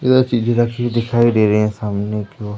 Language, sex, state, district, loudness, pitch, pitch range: Hindi, male, Madhya Pradesh, Umaria, -17 LUFS, 115 Hz, 105-120 Hz